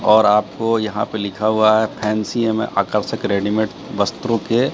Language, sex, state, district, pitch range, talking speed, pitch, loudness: Hindi, male, Bihar, Katihar, 105-110 Hz, 150 wpm, 110 Hz, -18 LUFS